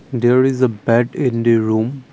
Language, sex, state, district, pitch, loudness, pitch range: English, male, Assam, Kamrup Metropolitan, 120 Hz, -16 LUFS, 115-130 Hz